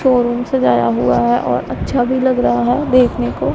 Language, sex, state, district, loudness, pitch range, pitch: Hindi, female, Punjab, Pathankot, -15 LUFS, 240-255 Hz, 245 Hz